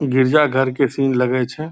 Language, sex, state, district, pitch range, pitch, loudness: Hindi, male, Bihar, Purnia, 130-145 Hz, 135 Hz, -17 LUFS